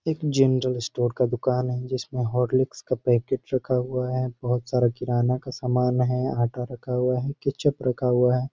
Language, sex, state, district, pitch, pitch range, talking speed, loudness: Hindi, male, Bihar, Sitamarhi, 125 Hz, 125-130 Hz, 190 wpm, -25 LUFS